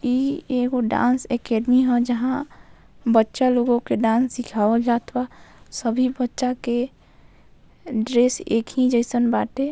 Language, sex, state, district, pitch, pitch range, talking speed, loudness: Bhojpuri, female, Bihar, Saran, 245 Hz, 235-255 Hz, 130 wpm, -21 LUFS